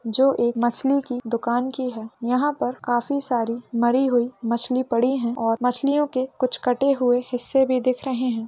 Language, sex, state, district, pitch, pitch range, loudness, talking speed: Hindi, female, Bihar, Saharsa, 250 Hz, 235-265 Hz, -22 LUFS, 190 wpm